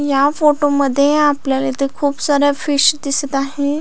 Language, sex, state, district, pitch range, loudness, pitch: Marathi, female, Maharashtra, Solapur, 275-290 Hz, -15 LUFS, 285 Hz